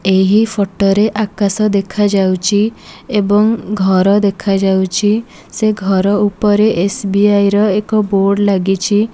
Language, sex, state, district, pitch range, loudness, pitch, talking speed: Odia, female, Odisha, Malkangiri, 195-210 Hz, -13 LUFS, 205 Hz, 105 wpm